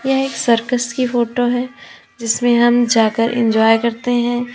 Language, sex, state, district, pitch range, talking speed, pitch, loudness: Hindi, female, Uttar Pradesh, Lalitpur, 230-245 Hz, 160 wpm, 240 Hz, -16 LUFS